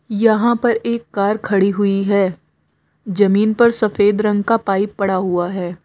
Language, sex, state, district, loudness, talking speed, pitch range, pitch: Hindi, female, Uttar Pradesh, Lucknow, -17 LUFS, 165 wpm, 195-220 Hz, 205 Hz